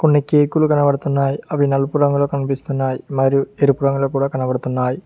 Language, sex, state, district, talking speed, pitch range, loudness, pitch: Telugu, male, Telangana, Hyderabad, 155 wpm, 135-145 Hz, -18 LUFS, 140 Hz